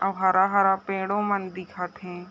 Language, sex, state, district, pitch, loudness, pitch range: Chhattisgarhi, female, Chhattisgarh, Raigarh, 190 Hz, -24 LUFS, 185-195 Hz